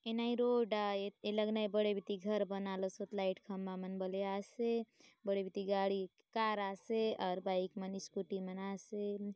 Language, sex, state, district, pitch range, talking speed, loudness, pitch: Halbi, female, Chhattisgarh, Bastar, 190-210 Hz, 180 wpm, -39 LUFS, 200 Hz